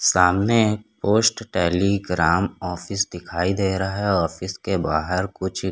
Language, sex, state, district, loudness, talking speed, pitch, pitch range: Hindi, male, Chhattisgarh, Korba, -22 LUFS, 135 wpm, 95 Hz, 90-100 Hz